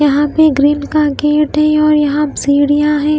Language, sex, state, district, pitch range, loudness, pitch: Hindi, female, Himachal Pradesh, Shimla, 290-300 Hz, -12 LUFS, 295 Hz